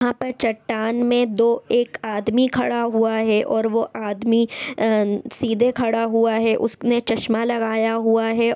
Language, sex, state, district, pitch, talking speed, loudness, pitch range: Hindi, female, Bihar, East Champaran, 230 Hz, 160 wpm, -20 LUFS, 225-240 Hz